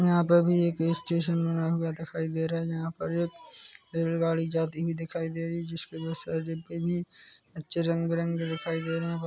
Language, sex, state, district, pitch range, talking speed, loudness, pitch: Hindi, male, Chhattisgarh, Korba, 165-170 Hz, 200 wpm, -29 LUFS, 165 Hz